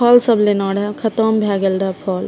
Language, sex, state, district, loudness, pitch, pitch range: Maithili, female, Bihar, Purnia, -16 LUFS, 205 Hz, 195-220 Hz